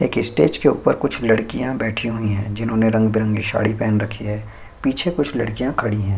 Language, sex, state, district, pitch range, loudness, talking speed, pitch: Hindi, male, Chhattisgarh, Sukma, 105-120 Hz, -20 LUFS, 195 wpm, 110 Hz